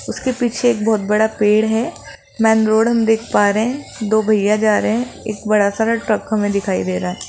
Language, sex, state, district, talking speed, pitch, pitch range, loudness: Hindi, female, Rajasthan, Jaipur, 230 wpm, 220 Hz, 210-225 Hz, -17 LUFS